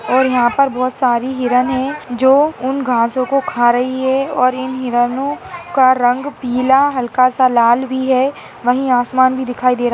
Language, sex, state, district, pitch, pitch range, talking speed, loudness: Hindi, female, Rajasthan, Nagaur, 255 Hz, 245-265 Hz, 195 wpm, -15 LUFS